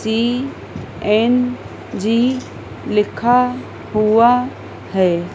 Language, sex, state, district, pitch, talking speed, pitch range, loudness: Hindi, female, Madhya Pradesh, Dhar, 230 Hz, 65 wpm, 215-250 Hz, -17 LUFS